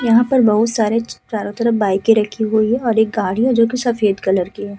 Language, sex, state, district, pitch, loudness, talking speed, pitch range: Hindi, female, Uttar Pradesh, Hamirpur, 220 Hz, -16 LUFS, 240 wpm, 205-230 Hz